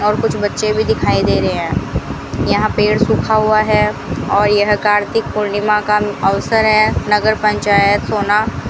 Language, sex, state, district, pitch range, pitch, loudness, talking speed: Hindi, female, Rajasthan, Bikaner, 205-215 Hz, 210 Hz, -15 LUFS, 160 wpm